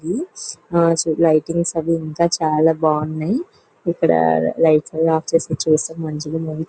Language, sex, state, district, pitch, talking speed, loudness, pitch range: Telugu, female, Andhra Pradesh, Chittoor, 160 Hz, 135 wpm, -18 LUFS, 155-170 Hz